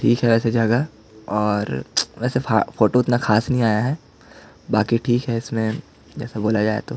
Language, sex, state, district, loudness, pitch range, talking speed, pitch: Hindi, male, Chhattisgarh, Jashpur, -20 LUFS, 110-120 Hz, 180 wpm, 115 Hz